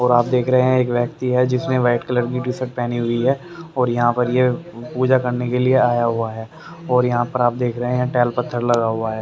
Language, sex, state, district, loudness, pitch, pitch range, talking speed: Hindi, male, Haryana, Rohtak, -19 LUFS, 125 Hz, 120-125 Hz, 255 wpm